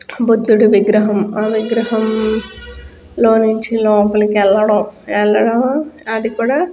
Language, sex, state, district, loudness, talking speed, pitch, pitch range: Telugu, female, Andhra Pradesh, Guntur, -14 LUFS, 100 wpm, 220 Hz, 210-230 Hz